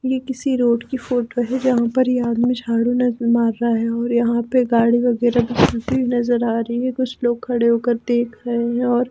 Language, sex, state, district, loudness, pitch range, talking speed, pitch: Hindi, female, Himachal Pradesh, Shimla, -19 LUFS, 235-250 Hz, 190 wpm, 240 Hz